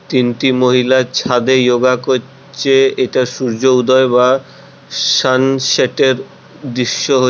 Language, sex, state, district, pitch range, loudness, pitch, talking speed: Bengali, male, West Bengal, Purulia, 125-135 Hz, -13 LUFS, 130 Hz, 100 wpm